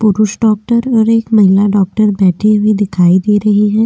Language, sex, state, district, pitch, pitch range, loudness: Hindi, female, Delhi, New Delhi, 210 Hz, 200-215 Hz, -11 LUFS